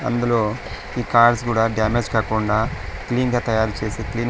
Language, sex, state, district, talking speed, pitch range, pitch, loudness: Telugu, male, Andhra Pradesh, Sri Satya Sai, 165 wpm, 110-120 Hz, 115 Hz, -20 LUFS